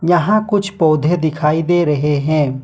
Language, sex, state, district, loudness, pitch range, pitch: Hindi, male, Jharkhand, Ranchi, -15 LUFS, 150-175 Hz, 160 Hz